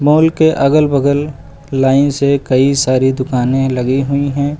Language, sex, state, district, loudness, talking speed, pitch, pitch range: Hindi, male, Uttar Pradesh, Lucknow, -13 LUFS, 155 wpm, 140 Hz, 135-145 Hz